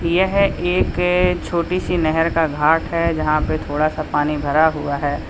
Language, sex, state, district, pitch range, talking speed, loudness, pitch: Hindi, male, Uttar Pradesh, Lalitpur, 150-175 Hz, 180 wpm, -18 LUFS, 160 Hz